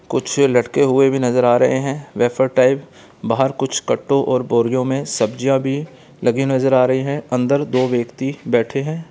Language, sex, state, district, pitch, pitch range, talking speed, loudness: Hindi, male, Bihar, Gaya, 130 Hz, 125-135 Hz, 185 wpm, -17 LUFS